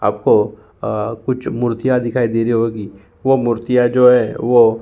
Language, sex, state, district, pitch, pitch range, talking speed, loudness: Hindi, male, Uttar Pradesh, Jyotiba Phule Nagar, 120 Hz, 115-125 Hz, 175 wpm, -16 LUFS